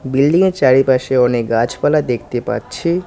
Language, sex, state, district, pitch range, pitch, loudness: Bengali, male, West Bengal, Cooch Behar, 120-150 Hz, 130 Hz, -15 LUFS